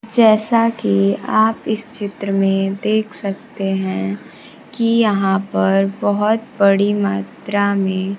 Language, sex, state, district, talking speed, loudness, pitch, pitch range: Hindi, female, Bihar, Kaimur, 115 wpm, -17 LUFS, 200 Hz, 195-220 Hz